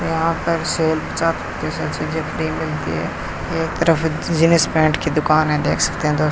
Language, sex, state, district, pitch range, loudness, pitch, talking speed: Hindi, male, Rajasthan, Bikaner, 150-165 Hz, -19 LUFS, 160 Hz, 150 wpm